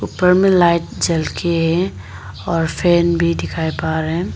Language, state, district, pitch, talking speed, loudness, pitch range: Hindi, Arunachal Pradesh, Lower Dibang Valley, 170 Hz, 180 wpm, -17 LUFS, 160-175 Hz